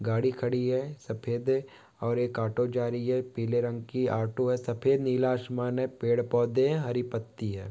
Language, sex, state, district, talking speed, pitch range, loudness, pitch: Hindi, male, West Bengal, North 24 Parganas, 200 wpm, 115-130 Hz, -29 LUFS, 125 Hz